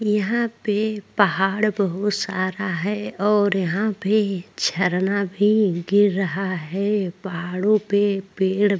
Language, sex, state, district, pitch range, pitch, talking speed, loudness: Hindi, female, Maharashtra, Chandrapur, 190-210 Hz, 200 Hz, 125 wpm, -21 LUFS